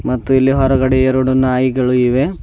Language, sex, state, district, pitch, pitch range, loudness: Kannada, male, Karnataka, Bidar, 130 Hz, 130-135 Hz, -14 LUFS